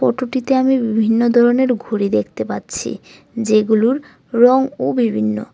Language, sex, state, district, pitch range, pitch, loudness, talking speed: Bengali, female, Tripura, West Tripura, 220-255 Hz, 240 Hz, -16 LUFS, 100 wpm